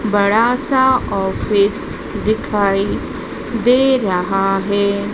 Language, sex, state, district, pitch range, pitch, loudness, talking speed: Hindi, female, Madhya Pradesh, Dhar, 200-235 Hz, 205 Hz, -16 LUFS, 80 wpm